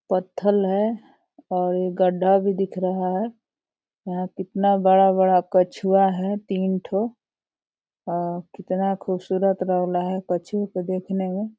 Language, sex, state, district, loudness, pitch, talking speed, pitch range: Hindi, female, Uttar Pradesh, Deoria, -22 LUFS, 190 Hz, 120 wpm, 185-195 Hz